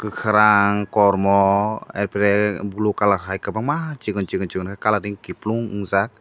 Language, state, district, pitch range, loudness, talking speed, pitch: Kokborok, Tripura, Dhalai, 100-105 Hz, -20 LUFS, 135 wpm, 105 Hz